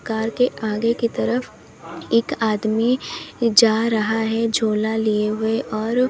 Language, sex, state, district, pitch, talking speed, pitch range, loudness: Hindi, female, Uttar Pradesh, Lalitpur, 225 Hz, 135 wpm, 220-235 Hz, -20 LUFS